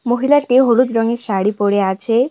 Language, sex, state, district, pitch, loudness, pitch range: Bengali, female, West Bengal, Cooch Behar, 235 Hz, -15 LUFS, 205-250 Hz